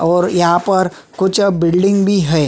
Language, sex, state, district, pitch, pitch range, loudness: Hindi, male, Chhattisgarh, Sukma, 180 Hz, 170-195 Hz, -14 LUFS